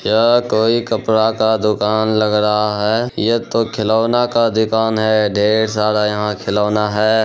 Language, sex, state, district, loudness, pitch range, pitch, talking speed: Hindi, male, Bihar, Araria, -15 LUFS, 105-115 Hz, 110 Hz, 155 wpm